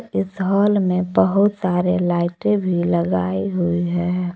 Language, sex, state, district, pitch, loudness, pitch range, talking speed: Hindi, female, Jharkhand, Palamu, 180 Hz, -19 LUFS, 175-190 Hz, 135 wpm